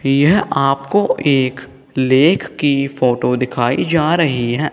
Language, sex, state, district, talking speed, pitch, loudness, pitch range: Hindi, male, Punjab, Kapurthala, 125 wpm, 135 Hz, -15 LUFS, 130-150 Hz